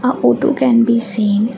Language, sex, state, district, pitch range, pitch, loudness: English, female, Assam, Kamrup Metropolitan, 210-250 Hz, 230 Hz, -14 LUFS